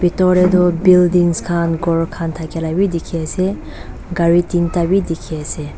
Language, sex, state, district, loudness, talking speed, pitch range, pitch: Nagamese, female, Nagaland, Dimapur, -16 LUFS, 185 wpm, 165-180 Hz, 170 Hz